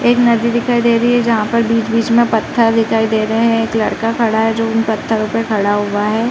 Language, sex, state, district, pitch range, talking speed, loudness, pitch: Hindi, female, Uttar Pradesh, Muzaffarnagar, 220-235 Hz, 245 wpm, -14 LUFS, 225 Hz